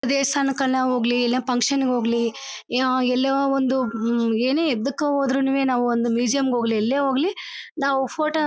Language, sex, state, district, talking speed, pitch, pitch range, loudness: Kannada, female, Karnataka, Bellary, 155 wpm, 260 Hz, 245-275 Hz, -21 LUFS